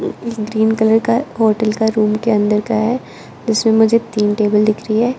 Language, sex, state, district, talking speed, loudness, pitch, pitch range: Hindi, female, Arunachal Pradesh, Lower Dibang Valley, 195 wpm, -15 LUFS, 220 Hz, 215-230 Hz